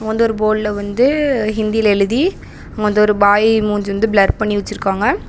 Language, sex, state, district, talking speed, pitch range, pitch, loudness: Tamil, female, Tamil Nadu, Namakkal, 170 wpm, 205-225 Hz, 215 Hz, -15 LUFS